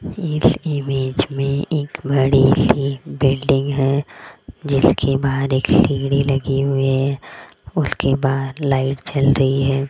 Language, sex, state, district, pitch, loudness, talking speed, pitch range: Hindi, female, Rajasthan, Jaipur, 135 Hz, -18 LUFS, 125 wpm, 135-140 Hz